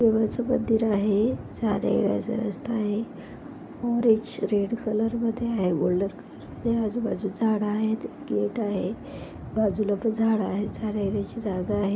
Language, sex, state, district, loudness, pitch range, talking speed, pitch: Marathi, female, Maharashtra, Pune, -26 LUFS, 205-230 Hz, 145 wpm, 220 Hz